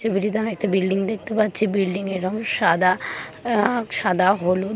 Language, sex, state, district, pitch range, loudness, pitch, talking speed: Bengali, female, West Bengal, Paschim Medinipur, 190-220 Hz, -21 LUFS, 200 Hz, 175 wpm